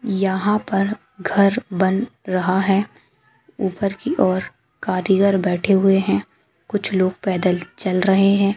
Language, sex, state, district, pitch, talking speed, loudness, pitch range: Hindi, female, Chhattisgarh, Jashpur, 195 Hz, 135 wpm, -19 LUFS, 185-200 Hz